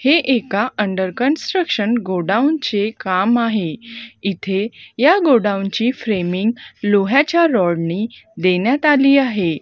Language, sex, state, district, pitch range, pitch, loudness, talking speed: Marathi, female, Maharashtra, Gondia, 195-265 Hz, 225 Hz, -17 LUFS, 105 wpm